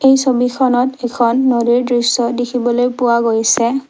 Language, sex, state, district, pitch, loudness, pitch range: Assamese, female, Assam, Kamrup Metropolitan, 245 Hz, -14 LUFS, 235-255 Hz